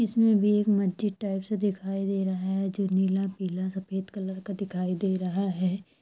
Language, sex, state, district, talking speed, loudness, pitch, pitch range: Hindi, female, Chhattisgarh, Bilaspur, 190 wpm, -28 LUFS, 195 Hz, 190-200 Hz